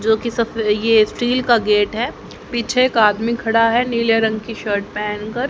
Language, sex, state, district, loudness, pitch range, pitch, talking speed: Hindi, female, Haryana, Jhajjar, -17 LUFS, 215-235 Hz, 225 Hz, 195 wpm